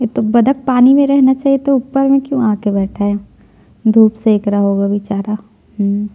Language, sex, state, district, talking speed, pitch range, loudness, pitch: Hindi, female, Chhattisgarh, Jashpur, 195 wpm, 205-265 Hz, -13 LUFS, 220 Hz